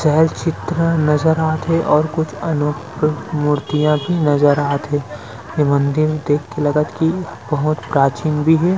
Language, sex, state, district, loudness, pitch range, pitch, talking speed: Chhattisgarhi, male, Chhattisgarh, Rajnandgaon, -17 LUFS, 145-160 Hz, 150 Hz, 145 wpm